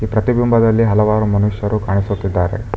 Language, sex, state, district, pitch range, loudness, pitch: Kannada, male, Karnataka, Bangalore, 100-110 Hz, -16 LUFS, 105 Hz